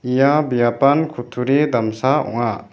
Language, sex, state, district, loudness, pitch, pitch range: Garo, male, Meghalaya, West Garo Hills, -18 LUFS, 130 Hz, 120-145 Hz